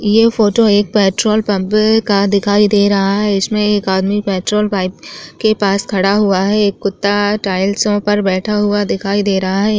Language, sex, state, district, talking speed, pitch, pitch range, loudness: Chhattisgarhi, female, Chhattisgarh, Jashpur, 185 wpm, 205 Hz, 195-210 Hz, -14 LUFS